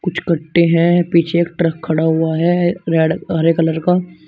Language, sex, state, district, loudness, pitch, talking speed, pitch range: Hindi, male, Uttar Pradesh, Shamli, -15 LUFS, 170 Hz, 180 wpm, 160-175 Hz